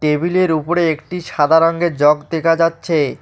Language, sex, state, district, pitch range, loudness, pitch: Bengali, male, West Bengal, Alipurduar, 155-170 Hz, -16 LUFS, 165 Hz